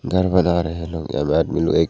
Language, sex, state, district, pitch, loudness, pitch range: Hindi, male, Arunachal Pradesh, Papum Pare, 85 Hz, -20 LUFS, 80-90 Hz